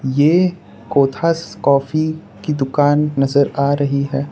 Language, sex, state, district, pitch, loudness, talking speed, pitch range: Hindi, male, Gujarat, Valsad, 140 Hz, -17 LUFS, 125 wpm, 140-155 Hz